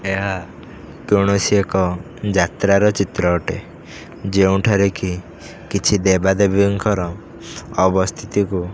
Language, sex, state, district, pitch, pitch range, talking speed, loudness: Odia, male, Odisha, Khordha, 95 Hz, 90-100 Hz, 90 wpm, -18 LUFS